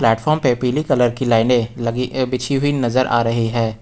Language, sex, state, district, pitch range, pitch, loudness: Hindi, male, Uttar Pradesh, Lucknow, 115-130 Hz, 125 Hz, -18 LUFS